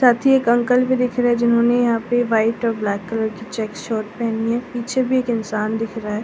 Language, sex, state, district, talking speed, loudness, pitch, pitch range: Hindi, female, Delhi, New Delhi, 260 wpm, -19 LUFS, 230 Hz, 220-245 Hz